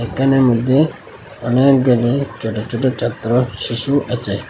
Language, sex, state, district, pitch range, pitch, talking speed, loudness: Bengali, male, Assam, Hailakandi, 115-135 Hz, 120 Hz, 105 wpm, -16 LUFS